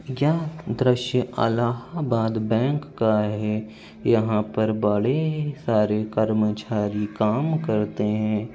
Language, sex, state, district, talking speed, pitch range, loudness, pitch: Hindi, male, Uttar Pradesh, Budaun, 105 wpm, 105-130 Hz, -23 LUFS, 110 Hz